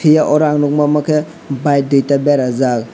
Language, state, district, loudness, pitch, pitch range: Kokborok, Tripura, West Tripura, -14 LUFS, 145 Hz, 135-150 Hz